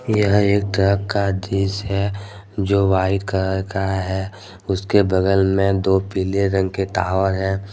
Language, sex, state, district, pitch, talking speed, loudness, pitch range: Hindi, male, Jharkhand, Deoghar, 95 Hz, 155 wpm, -19 LUFS, 95-100 Hz